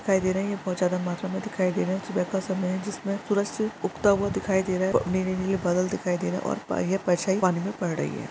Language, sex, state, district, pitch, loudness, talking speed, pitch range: Hindi, male, Jharkhand, Jamtara, 190 Hz, -26 LUFS, 290 wpm, 185-200 Hz